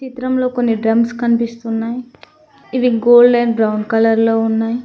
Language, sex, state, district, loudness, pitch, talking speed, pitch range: Telugu, female, Telangana, Mahabubabad, -15 LUFS, 235 Hz, 150 wpm, 225-250 Hz